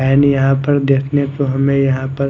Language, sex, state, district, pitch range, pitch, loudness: Hindi, male, Chandigarh, Chandigarh, 135-140 Hz, 140 Hz, -15 LUFS